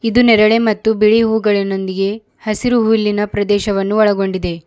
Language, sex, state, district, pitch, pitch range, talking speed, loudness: Kannada, female, Karnataka, Bidar, 210 Hz, 200-220 Hz, 115 wpm, -14 LUFS